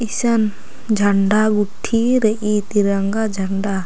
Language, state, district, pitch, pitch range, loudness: Kurukh, Chhattisgarh, Jashpur, 210 Hz, 200-220 Hz, -18 LUFS